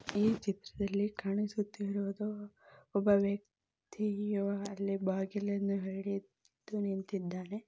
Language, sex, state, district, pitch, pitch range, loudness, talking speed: Kannada, female, Karnataka, Dakshina Kannada, 200 Hz, 195-205 Hz, -35 LUFS, 70 wpm